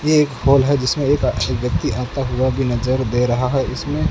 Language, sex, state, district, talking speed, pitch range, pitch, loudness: Hindi, male, Rajasthan, Bikaner, 220 wpm, 125-140 Hz, 130 Hz, -18 LUFS